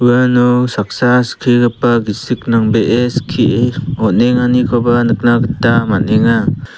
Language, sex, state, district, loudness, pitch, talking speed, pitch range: Garo, male, Meghalaya, South Garo Hills, -13 LUFS, 120 Hz, 90 wpm, 115-125 Hz